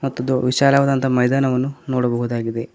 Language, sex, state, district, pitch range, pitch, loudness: Kannada, male, Karnataka, Koppal, 125-135 Hz, 130 Hz, -18 LUFS